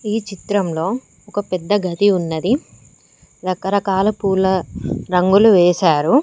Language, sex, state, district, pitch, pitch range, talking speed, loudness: Telugu, female, Telangana, Mahabubabad, 195 Hz, 180-205 Hz, 95 wpm, -17 LUFS